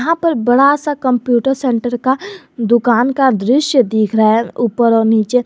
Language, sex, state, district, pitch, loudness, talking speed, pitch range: Hindi, male, Jharkhand, Garhwa, 245 Hz, -14 LUFS, 155 wpm, 235-270 Hz